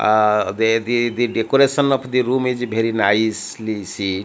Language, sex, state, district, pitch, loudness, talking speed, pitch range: English, male, Odisha, Malkangiri, 115 Hz, -18 LUFS, 170 wpm, 105-125 Hz